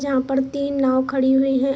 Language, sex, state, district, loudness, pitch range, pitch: Hindi, female, Jharkhand, Sahebganj, -20 LUFS, 265-275 Hz, 270 Hz